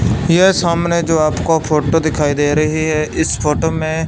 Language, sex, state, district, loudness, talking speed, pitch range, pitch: Hindi, male, Punjab, Fazilka, -15 LUFS, 175 wpm, 150-165 Hz, 155 Hz